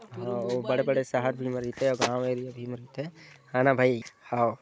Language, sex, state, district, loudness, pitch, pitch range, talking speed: Chhattisgarhi, male, Chhattisgarh, Bilaspur, -28 LUFS, 125 Hz, 120-135 Hz, 220 wpm